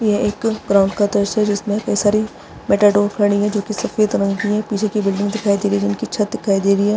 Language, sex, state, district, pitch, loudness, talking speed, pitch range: Hindi, female, Chhattisgarh, Bastar, 205 Hz, -17 LUFS, 275 wpm, 200-215 Hz